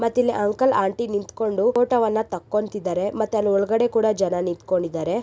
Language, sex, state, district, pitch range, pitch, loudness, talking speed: Kannada, female, Karnataka, Raichur, 190-225 Hz, 210 Hz, -22 LUFS, 140 wpm